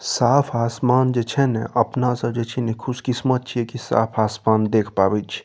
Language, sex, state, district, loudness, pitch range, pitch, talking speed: Maithili, male, Bihar, Saharsa, -20 LUFS, 115-125 Hz, 120 Hz, 210 wpm